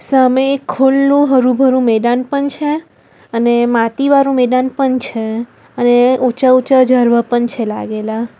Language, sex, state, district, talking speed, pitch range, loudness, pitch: Gujarati, female, Gujarat, Valsad, 155 wpm, 240-270 Hz, -13 LUFS, 255 Hz